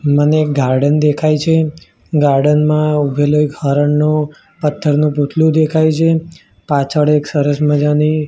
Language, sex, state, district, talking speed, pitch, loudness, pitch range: Gujarati, male, Gujarat, Gandhinagar, 125 wpm, 150 Hz, -14 LUFS, 145-155 Hz